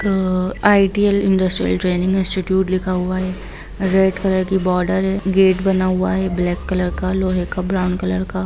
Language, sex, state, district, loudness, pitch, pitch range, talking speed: Hindi, female, Bihar, Gopalganj, -17 LUFS, 185 Hz, 185-190 Hz, 175 wpm